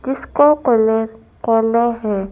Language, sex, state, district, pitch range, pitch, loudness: Hindi, female, Madhya Pradesh, Bhopal, 220-245 Hz, 225 Hz, -16 LUFS